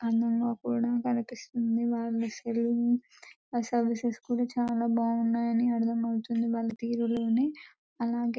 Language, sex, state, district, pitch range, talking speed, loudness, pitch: Telugu, female, Telangana, Nalgonda, 230-240 Hz, 100 wpm, -30 LUFS, 235 Hz